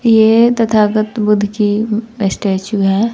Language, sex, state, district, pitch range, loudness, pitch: Hindi, female, Bihar, West Champaran, 205-225 Hz, -13 LUFS, 215 Hz